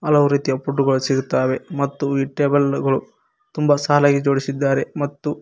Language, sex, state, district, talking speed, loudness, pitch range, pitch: Kannada, male, Karnataka, Koppal, 145 wpm, -19 LUFS, 135-145 Hz, 140 Hz